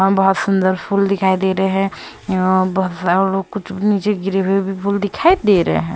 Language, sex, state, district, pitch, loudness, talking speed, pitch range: Hindi, female, Goa, North and South Goa, 195 Hz, -17 LUFS, 200 wpm, 190-200 Hz